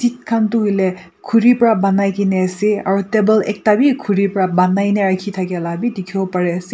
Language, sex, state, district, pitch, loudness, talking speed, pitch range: Nagamese, female, Nagaland, Kohima, 200 Hz, -16 LUFS, 205 wpm, 185-215 Hz